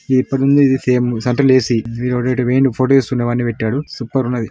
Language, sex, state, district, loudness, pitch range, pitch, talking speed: Telugu, male, Telangana, Nalgonda, -15 LUFS, 120-135 Hz, 125 Hz, 185 wpm